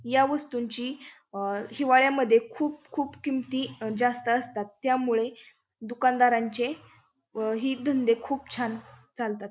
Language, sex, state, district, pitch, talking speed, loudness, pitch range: Marathi, female, Maharashtra, Pune, 245 Hz, 95 wpm, -27 LUFS, 230-270 Hz